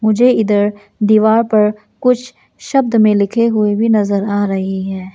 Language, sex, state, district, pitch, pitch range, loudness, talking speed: Hindi, female, Arunachal Pradesh, Lower Dibang Valley, 215 Hz, 205-230 Hz, -14 LUFS, 165 wpm